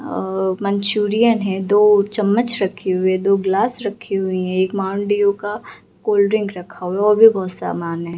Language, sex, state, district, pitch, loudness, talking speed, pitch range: Hindi, female, Bihar, Gaya, 200 Hz, -18 LUFS, 175 wpm, 190-210 Hz